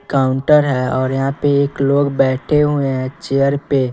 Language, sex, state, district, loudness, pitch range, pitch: Hindi, female, Bihar, West Champaran, -16 LUFS, 130-145 Hz, 140 Hz